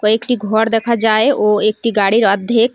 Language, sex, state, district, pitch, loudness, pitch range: Bengali, female, West Bengal, Cooch Behar, 220 Hz, -14 LUFS, 210-230 Hz